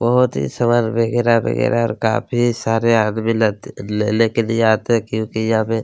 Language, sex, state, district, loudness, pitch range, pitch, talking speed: Hindi, male, Chhattisgarh, Kabirdham, -17 LUFS, 110-120 Hz, 115 Hz, 215 wpm